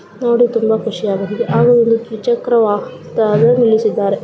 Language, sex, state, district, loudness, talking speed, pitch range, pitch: Kannada, female, Karnataka, Shimoga, -14 LUFS, 115 wpm, 210-235 Hz, 225 Hz